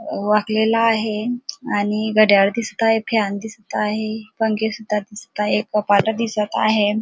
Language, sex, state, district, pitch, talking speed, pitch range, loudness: Marathi, female, Maharashtra, Dhule, 215 Hz, 135 wpm, 210-225 Hz, -19 LUFS